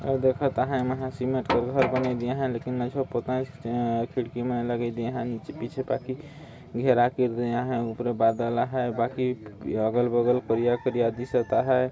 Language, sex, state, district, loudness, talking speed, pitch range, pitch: Sadri, male, Chhattisgarh, Jashpur, -27 LUFS, 180 wpm, 120-130 Hz, 125 Hz